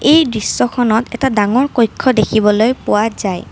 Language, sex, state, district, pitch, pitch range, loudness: Assamese, female, Assam, Kamrup Metropolitan, 230 Hz, 215-255 Hz, -14 LUFS